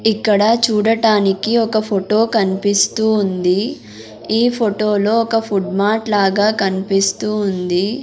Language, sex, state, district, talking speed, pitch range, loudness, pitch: Telugu, female, Andhra Pradesh, Sri Satya Sai, 110 wpm, 195-220 Hz, -16 LUFS, 210 Hz